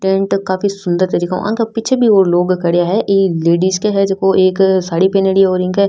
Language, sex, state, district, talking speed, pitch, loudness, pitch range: Rajasthani, female, Rajasthan, Nagaur, 215 wpm, 190 Hz, -14 LUFS, 185-195 Hz